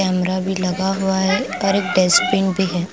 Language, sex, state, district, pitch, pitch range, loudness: Hindi, female, Bihar, Patna, 190 Hz, 185-195 Hz, -18 LUFS